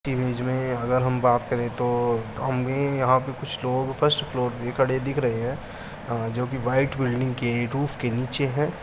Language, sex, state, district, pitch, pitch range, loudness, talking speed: Hindi, male, Uttar Pradesh, Muzaffarnagar, 130 Hz, 120-135 Hz, -25 LUFS, 195 wpm